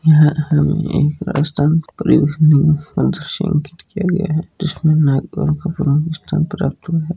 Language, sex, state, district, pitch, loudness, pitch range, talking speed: Hindi, female, Rajasthan, Nagaur, 155 Hz, -16 LUFS, 150-170 Hz, 115 wpm